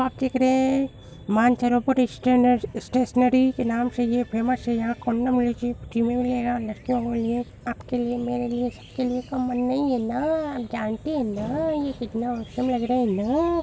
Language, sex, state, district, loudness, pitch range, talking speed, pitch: Hindi, female, Bihar, Supaul, -24 LUFS, 240-255 Hz, 170 wpm, 245 Hz